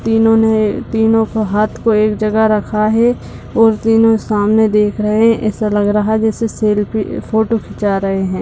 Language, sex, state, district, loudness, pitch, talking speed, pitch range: Hindi, male, Bihar, Purnia, -14 LUFS, 215 Hz, 185 wpm, 210-225 Hz